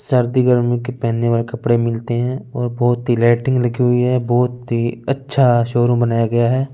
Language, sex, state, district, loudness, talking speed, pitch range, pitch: Hindi, male, Punjab, Fazilka, -17 LUFS, 195 wpm, 120-125 Hz, 120 Hz